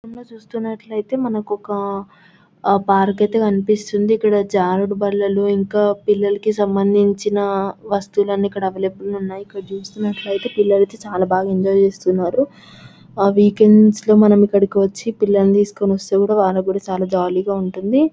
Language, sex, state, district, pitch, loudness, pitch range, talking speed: Telugu, female, Telangana, Nalgonda, 200 Hz, -17 LUFS, 195-210 Hz, 145 wpm